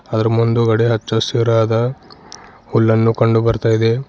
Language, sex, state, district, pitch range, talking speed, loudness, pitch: Kannada, male, Karnataka, Bidar, 110-115 Hz, 115 wpm, -15 LUFS, 115 Hz